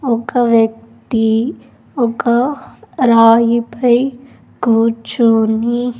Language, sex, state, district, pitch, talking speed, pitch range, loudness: Telugu, female, Andhra Pradesh, Sri Satya Sai, 235 Hz, 50 wpm, 230-245 Hz, -14 LUFS